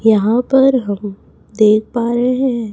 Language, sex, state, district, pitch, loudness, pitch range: Hindi, female, Chhattisgarh, Raipur, 230 Hz, -14 LUFS, 215-250 Hz